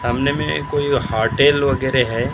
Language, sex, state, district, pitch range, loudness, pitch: Hindi, male, Maharashtra, Gondia, 120-140 Hz, -18 LUFS, 135 Hz